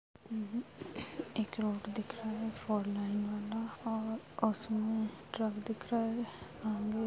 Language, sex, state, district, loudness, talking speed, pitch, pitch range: Hindi, female, Chhattisgarh, Jashpur, -38 LUFS, 125 wpm, 220 Hz, 210-225 Hz